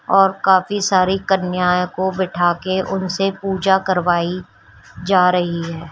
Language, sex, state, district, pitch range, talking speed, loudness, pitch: Hindi, female, Uttar Pradesh, Shamli, 180-190 Hz, 120 wpm, -17 LUFS, 185 Hz